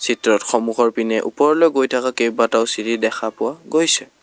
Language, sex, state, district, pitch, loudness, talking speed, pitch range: Assamese, male, Assam, Kamrup Metropolitan, 115 Hz, -18 LUFS, 155 wpm, 115-135 Hz